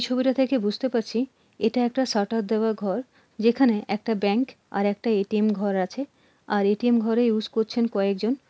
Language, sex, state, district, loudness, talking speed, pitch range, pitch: Bengali, female, West Bengal, Purulia, -24 LUFS, 165 wpm, 210-245 Hz, 225 Hz